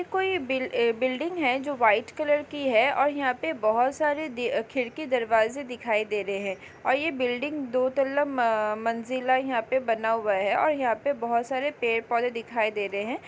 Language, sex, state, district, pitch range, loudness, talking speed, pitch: Hindi, female, Chhattisgarh, Raigarh, 225-280 Hz, -26 LUFS, 200 wpm, 250 Hz